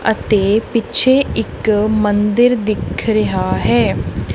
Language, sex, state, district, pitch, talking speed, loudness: Punjabi, male, Punjab, Kapurthala, 210 Hz, 95 wpm, -15 LUFS